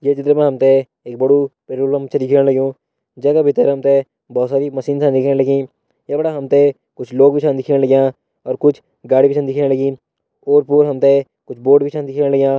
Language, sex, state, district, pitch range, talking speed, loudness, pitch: Hindi, male, Uttarakhand, Tehri Garhwal, 135-145 Hz, 225 wpm, -15 LUFS, 140 Hz